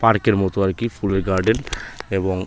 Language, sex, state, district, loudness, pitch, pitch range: Bengali, male, West Bengal, Malda, -21 LUFS, 100 Hz, 95-110 Hz